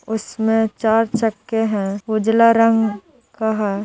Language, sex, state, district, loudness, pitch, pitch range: Hindi, female, Bihar, Jahanabad, -18 LUFS, 220 Hz, 215-225 Hz